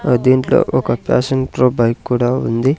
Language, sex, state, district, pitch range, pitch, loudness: Telugu, male, Andhra Pradesh, Sri Satya Sai, 120-130 Hz, 125 Hz, -15 LUFS